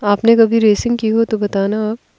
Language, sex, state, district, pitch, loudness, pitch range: Hindi, female, Bihar, Kishanganj, 220 Hz, -14 LUFS, 205-230 Hz